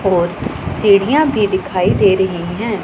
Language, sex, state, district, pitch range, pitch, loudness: Hindi, female, Punjab, Pathankot, 180-210 Hz, 190 Hz, -15 LUFS